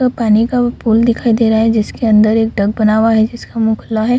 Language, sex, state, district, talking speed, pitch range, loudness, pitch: Hindi, female, Bihar, Purnia, 285 wpm, 220-235 Hz, -13 LUFS, 225 Hz